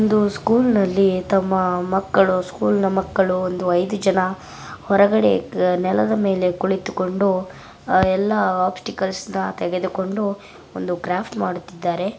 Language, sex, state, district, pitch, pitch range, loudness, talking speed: Kannada, female, Karnataka, Gulbarga, 190 Hz, 185-200 Hz, -20 LUFS, 105 wpm